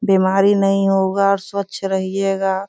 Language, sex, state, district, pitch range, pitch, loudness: Hindi, female, Bihar, Sitamarhi, 190-195 Hz, 195 Hz, -17 LUFS